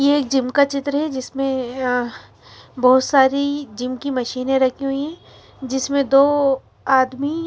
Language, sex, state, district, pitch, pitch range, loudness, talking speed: Hindi, female, Chandigarh, Chandigarh, 270 Hz, 260-280 Hz, -19 LUFS, 155 wpm